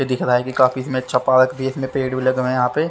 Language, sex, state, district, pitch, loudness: Hindi, male, Haryana, Charkhi Dadri, 130 Hz, -18 LUFS